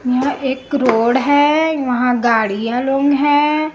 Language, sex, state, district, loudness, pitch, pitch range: Hindi, female, Chhattisgarh, Raipur, -15 LUFS, 265 Hz, 245-290 Hz